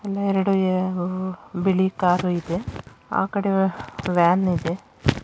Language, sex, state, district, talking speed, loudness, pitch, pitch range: Kannada, female, Karnataka, Shimoga, 125 wpm, -23 LUFS, 185 Hz, 175-190 Hz